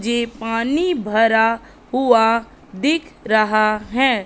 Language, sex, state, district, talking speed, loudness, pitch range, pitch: Hindi, female, Madhya Pradesh, Katni, 100 wpm, -18 LUFS, 220-255 Hz, 230 Hz